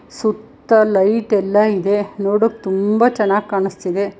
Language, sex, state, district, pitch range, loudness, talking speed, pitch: Kannada, female, Karnataka, Bangalore, 195-215 Hz, -16 LUFS, 115 wpm, 205 Hz